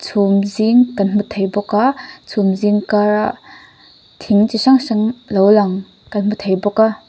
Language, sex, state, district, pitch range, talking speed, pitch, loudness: Mizo, female, Mizoram, Aizawl, 200-220 Hz, 160 wpm, 210 Hz, -15 LUFS